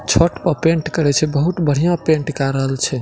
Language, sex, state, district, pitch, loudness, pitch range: Maithili, male, Bihar, Madhepura, 155 Hz, -17 LUFS, 140-165 Hz